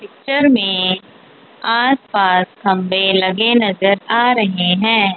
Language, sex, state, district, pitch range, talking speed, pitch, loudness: Hindi, female, Punjab, Kapurthala, 190-235 Hz, 115 wpm, 200 Hz, -15 LUFS